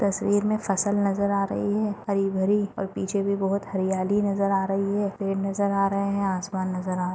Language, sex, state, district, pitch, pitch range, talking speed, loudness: Hindi, female, Maharashtra, Solapur, 195 Hz, 195-200 Hz, 225 wpm, -25 LUFS